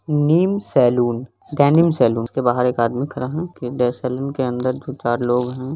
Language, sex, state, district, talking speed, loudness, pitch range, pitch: Hindi, male, Bihar, Lakhisarai, 185 wpm, -19 LUFS, 125-145 Hz, 130 Hz